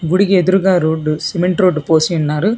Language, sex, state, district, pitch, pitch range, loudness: Telugu, female, Telangana, Hyderabad, 180 Hz, 160-190 Hz, -14 LUFS